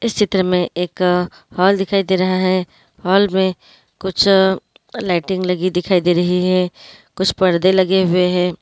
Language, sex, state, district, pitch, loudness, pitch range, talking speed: Hindi, female, Uttarakhand, Uttarkashi, 185 Hz, -16 LUFS, 180-190 Hz, 160 wpm